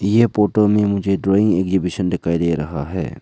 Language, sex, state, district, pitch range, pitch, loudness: Hindi, male, Arunachal Pradesh, Lower Dibang Valley, 90-105 Hz, 95 Hz, -18 LUFS